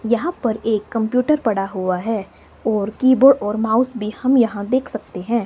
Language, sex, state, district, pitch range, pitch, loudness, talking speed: Hindi, female, Himachal Pradesh, Shimla, 210-250 Hz, 225 Hz, -19 LUFS, 185 wpm